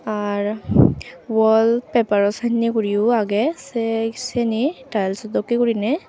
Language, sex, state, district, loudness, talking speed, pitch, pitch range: Chakma, female, Tripura, Unakoti, -20 LUFS, 110 wpm, 225 Hz, 210-240 Hz